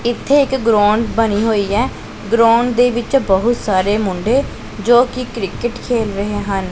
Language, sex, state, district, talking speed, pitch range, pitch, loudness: Punjabi, female, Punjab, Pathankot, 150 wpm, 205-240 Hz, 230 Hz, -15 LUFS